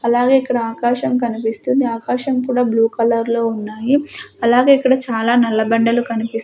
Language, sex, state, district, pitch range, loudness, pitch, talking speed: Telugu, female, Andhra Pradesh, Sri Satya Sai, 230-255 Hz, -16 LUFS, 235 Hz, 150 wpm